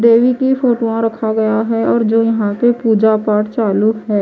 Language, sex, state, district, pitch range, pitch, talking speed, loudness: Hindi, female, Chhattisgarh, Raipur, 215-230 Hz, 225 Hz, 200 wpm, -14 LUFS